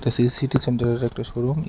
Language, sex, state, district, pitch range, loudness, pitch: Bengali, male, Tripura, West Tripura, 120-135 Hz, -23 LUFS, 125 Hz